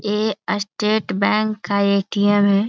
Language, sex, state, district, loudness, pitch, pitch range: Hindi, female, Bihar, Jamui, -19 LUFS, 205 Hz, 200-215 Hz